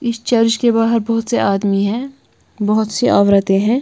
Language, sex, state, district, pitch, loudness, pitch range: Hindi, female, Punjab, Kapurthala, 225 Hz, -15 LUFS, 200-235 Hz